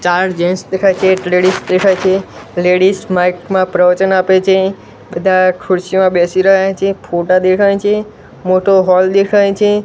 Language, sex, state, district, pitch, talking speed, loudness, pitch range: Gujarati, male, Gujarat, Gandhinagar, 190 Hz, 160 wpm, -12 LUFS, 185-195 Hz